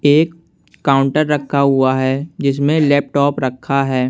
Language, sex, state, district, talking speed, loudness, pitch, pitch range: Hindi, male, Punjab, Kapurthala, 130 wpm, -16 LUFS, 140 Hz, 135-150 Hz